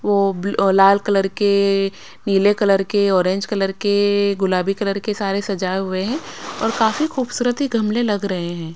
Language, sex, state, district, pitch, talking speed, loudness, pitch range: Hindi, female, Bihar, Patna, 200 Hz, 180 wpm, -18 LUFS, 195-210 Hz